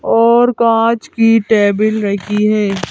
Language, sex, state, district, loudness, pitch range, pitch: Hindi, female, Madhya Pradesh, Bhopal, -13 LUFS, 205-230 Hz, 220 Hz